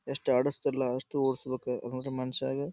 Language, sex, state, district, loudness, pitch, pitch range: Kannada, male, Karnataka, Dharwad, -32 LUFS, 130 Hz, 130-135 Hz